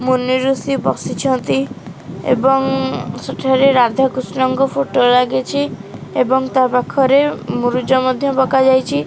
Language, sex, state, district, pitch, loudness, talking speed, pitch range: Odia, female, Odisha, Khordha, 260 Hz, -16 LUFS, 105 wpm, 250-270 Hz